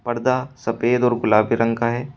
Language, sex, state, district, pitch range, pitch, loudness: Hindi, male, Uttar Pradesh, Shamli, 115-125 Hz, 120 Hz, -20 LUFS